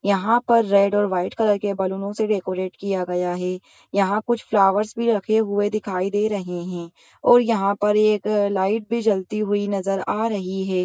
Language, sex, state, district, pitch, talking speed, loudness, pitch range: Hindi, female, Bihar, Begusarai, 200 Hz, 195 wpm, -21 LUFS, 190-215 Hz